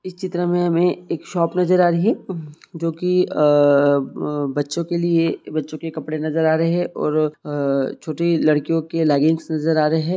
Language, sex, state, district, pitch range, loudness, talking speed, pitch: Hindi, male, Jharkhand, Sahebganj, 150-175 Hz, -19 LUFS, 185 wpm, 160 Hz